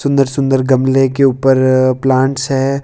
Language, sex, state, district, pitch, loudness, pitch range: Hindi, male, Himachal Pradesh, Shimla, 135 Hz, -13 LUFS, 130-135 Hz